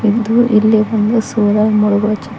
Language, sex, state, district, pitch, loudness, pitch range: Kannada, female, Karnataka, Koppal, 215 Hz, -13 LUFS, 210-225 Hz